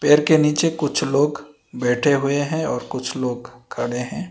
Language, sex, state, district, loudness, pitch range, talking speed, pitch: Hindi, male, Karnataka, Bangalore, -20 LUFS, 125-150 Hz, 180 wpm, 145 Hz